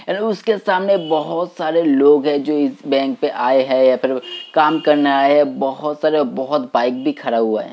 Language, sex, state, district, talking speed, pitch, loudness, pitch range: Hindi, male, Uttar Pradesh, Hamirpur, 210 wpm, 150 Hz, -17 LUFS, 135-155 Hz